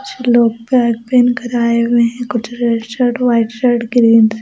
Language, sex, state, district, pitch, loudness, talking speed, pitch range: Hindi, female, Punjab, Pathankot, 240 Hz, -14 LUFS, 215 wpm, 230-245 Hz